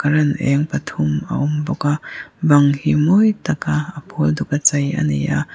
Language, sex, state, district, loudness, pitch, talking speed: Mizo, female, Mizoram, Aizawl, -18 LUFS, 145 Hz, 185 wpm